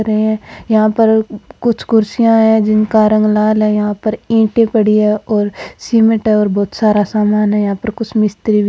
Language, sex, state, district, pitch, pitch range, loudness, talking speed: Marwari, female, Rajasthan, Churu, 215 Hz, 210-225 Hz, -13 LUFS, 200 wpm